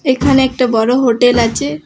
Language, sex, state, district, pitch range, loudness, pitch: Bengali, female, West Bengal, Alipurduar, 240-270 Hz, -12 LUFS, 255 Hz